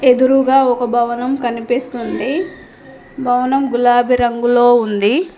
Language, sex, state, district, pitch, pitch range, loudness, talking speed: Telugu, female, Telangana, Mahabubabad, 245 Hz, 240-265 Hz, -15 LUFS, 90 wpm